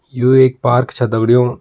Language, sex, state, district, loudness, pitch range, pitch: Kumaoni, male, Uttarakhand, Tehri Garhwal, -13 LUFS, 120-130 Hz, 125 Hz